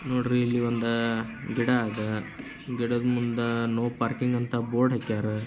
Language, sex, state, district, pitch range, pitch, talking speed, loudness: Kannada, male, Karnataka, Dharwad, 115-125 Hz, 120 Hz, 120 wpm, -27 LUFS